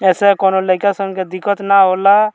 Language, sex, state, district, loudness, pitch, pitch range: Bhojpuri, male, Bihar, Muzaffarpur, -14 LUFS, 195 Hz, 185-200 Hz